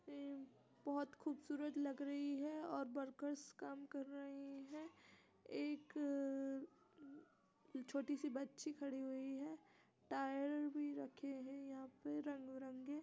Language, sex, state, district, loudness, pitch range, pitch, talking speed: Hindi, female, Uttar Pradesh, Jalaun, -48 LUFS, 275-295 Hz, 280 Hz, 130 wpm